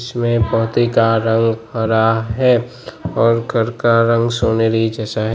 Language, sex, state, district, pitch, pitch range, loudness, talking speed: Hindi, male, Gujarat, Gandhinagar, 115 Hz, 115-120 Hz, -16 LUFS, 145 wpm